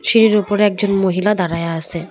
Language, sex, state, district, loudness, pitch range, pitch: Bengali, female, West Bengal, Cooch Behar, -16 LUFS, 170-210 Hz, 200 Hz